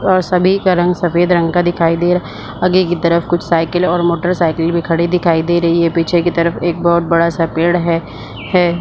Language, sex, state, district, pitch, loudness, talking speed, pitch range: Hindi, female, Chhattisgarh, Bilaspur, 170 Hz, -14 LUFS, 225 wpm, 170-175 Hz